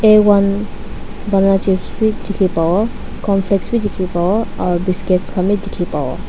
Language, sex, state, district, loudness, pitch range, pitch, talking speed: Nagamese, female, Nagaland, Dimapur, -16 LUFS, 185-205 Hz, 195 Hz, 145 wpm